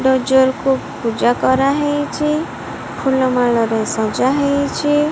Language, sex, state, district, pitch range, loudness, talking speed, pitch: Odia, female, Odisha, Malkangiri, 245-285 Hz, -16 LUFS, 105 wpm, 265 Hz